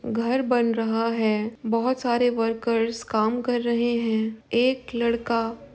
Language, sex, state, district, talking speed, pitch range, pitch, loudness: Hindi, female, Uttar Pradesh, Jyotiba Phule Nagar, 145 wpm, 225-240 Hz, 235 Hz, -24 LUFS